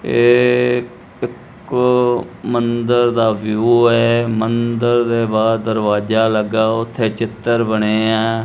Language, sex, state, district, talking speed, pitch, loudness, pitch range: Punjabi, male, Punjab, Kapurthala, 105 wpm, 115 Hz, -16 LUFS, 110-120 Hz